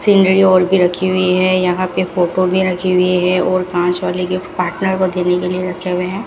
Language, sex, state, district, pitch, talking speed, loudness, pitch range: Hindi, female, Rajasthan, Bikaner, 185 Hz, 230 wpm, -15 LUFS, 180-185 Hz